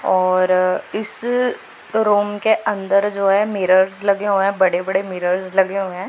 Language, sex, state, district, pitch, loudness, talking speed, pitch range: Hindi, female, Punjab, Pathankot, 195 Hz, -18 LUFS, 165 wpm, 185-205 Hz